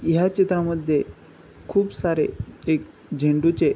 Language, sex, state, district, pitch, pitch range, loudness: Marathi, male, Maharashtra, Chandrapur, 165 Hz, 155-185 Hz, -23 LUFS